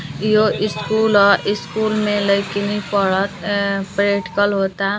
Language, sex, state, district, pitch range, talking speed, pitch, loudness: Bhojpuri, female, Uttar Pradesh, Deoria, 195-210 Hz, 130 wpm, 200 Hz, -18 LUFS